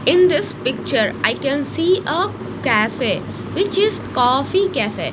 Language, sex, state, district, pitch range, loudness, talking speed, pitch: English, female, Odisha, Nuapada, 280-390 Hz, -18 LUFS, 140 wpm, 365 Hz